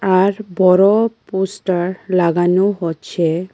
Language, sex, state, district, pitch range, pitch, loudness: Bengali, female, Tripura, West Tripura, 175-195 Hz, 185 Hz, -16 LUFS